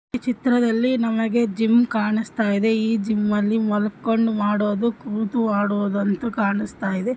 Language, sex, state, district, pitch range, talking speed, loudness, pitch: Kannada, female, Karnataka, Shimoga, 210-235 Hz, 125 wpm, -21 LUFS, 220 Hz